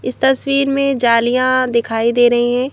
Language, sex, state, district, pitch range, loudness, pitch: Hindi, female, Madhya Pradesh, Bhopal, 240-265 Hz, -14 LUFS, 250 Hz